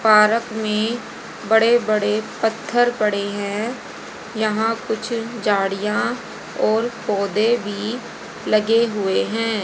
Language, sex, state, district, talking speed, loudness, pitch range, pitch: Hindi, female, Haryana, Jhajjar, 100 wpm, -20 LUFS, 210-230 Hz, 220 Hz